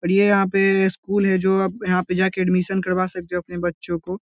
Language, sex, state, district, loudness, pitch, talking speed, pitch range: Hindi, male, Bihar, Lakhisarai, -20 LUFS, 185 Hz, 255 wpm, 180-195 Hz